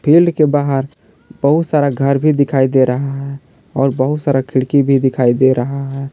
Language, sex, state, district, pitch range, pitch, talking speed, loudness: Hindi, male, Jharkhand, Palamu, 130-145 Hz, 140 Hz, 195 wpm, -14 LUFS